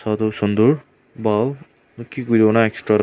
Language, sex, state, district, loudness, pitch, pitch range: Nagamese, male, Nagaland, Kohima, -18 LUFS, 115 Hz, 110-130 Hz